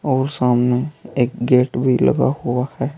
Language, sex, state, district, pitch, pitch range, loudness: Hindi, male, Uttar Pradesh, Saharanpur, 125 Hz, 125-135 Hz, -18 LUFS